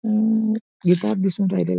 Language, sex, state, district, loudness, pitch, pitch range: Marathi, male, Maharashtra, Nagpur, -21 LUFS, 210 Hz, 185-220 Hz